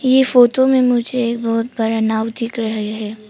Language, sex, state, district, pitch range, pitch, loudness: Hindi, female, Arunachal Pradesh, Papum Pare, 220-250 Hz, 230 Hz, -16 LUFS